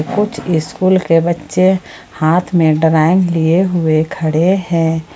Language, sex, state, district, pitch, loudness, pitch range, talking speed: Hindi, female, Jharkhand, Ranchi, 165 Hz, -14 LUFS, 160-185 Hz, 130 wpm